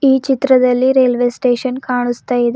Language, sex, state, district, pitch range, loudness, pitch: Kannada, female, Karnataka, Bidar, 245-260 Hz, -14 LUFS, 250 Hz